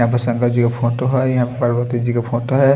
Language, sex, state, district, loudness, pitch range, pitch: Hindi, male, Haryana, Rohtak, -18 LUFS, 120-125 Hz, 120 Hz